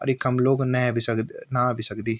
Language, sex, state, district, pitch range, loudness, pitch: Garhwali, male, Uttarakhand, Tehri Garhwal, 115-130 Hz, -23 LUFS, 125 Hz